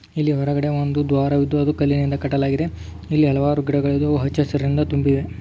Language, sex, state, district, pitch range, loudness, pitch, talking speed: Kannada, male, Karnataka, Dharwad, 140-145 Hz, -20 LUFS, 145 Hz, 110 wpm